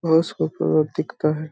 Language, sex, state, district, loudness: Hindi, male, Jharkhand, Sahebganj, -22 LUFS